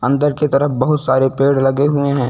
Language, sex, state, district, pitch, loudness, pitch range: Hindi, male, Uttar Pradesh, Lucknow, 140 Hz, -15 LUFS, 135-145 Hz